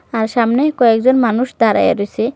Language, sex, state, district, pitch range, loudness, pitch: Bengali, female, West Bengal, Kolkata, 225-255 Hz, -14 LUFS, 235 Hz